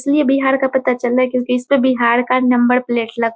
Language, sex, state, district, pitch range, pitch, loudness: Hindi, female, Bihar, Muzaffarpur, 245-265 Hz, 250 Hz, -15 LUFS